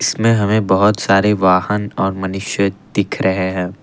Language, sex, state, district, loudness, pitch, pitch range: Hindi, male, Assam, Kamrup Metropolitan, -16 LUFS, 95 Hz, 95-105 Hz